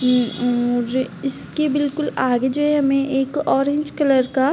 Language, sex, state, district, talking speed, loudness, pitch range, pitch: Hindi, female, Uttar Pradesh, Gorakhpur, 145 wpm, -20 LUFS, 250-290 Hz, 270 Hz